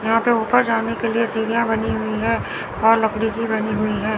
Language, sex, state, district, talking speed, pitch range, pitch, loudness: Hindi, male, Chandigarh, Chandigarh, 230 wpm, 220-230 Hz, 225 Hz, -20 LUFS